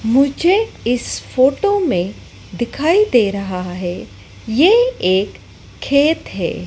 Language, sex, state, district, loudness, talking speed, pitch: Hindi, female, Madhya Pradesh, Dhar, -16 LUFS, 110 wpm, 250 Hz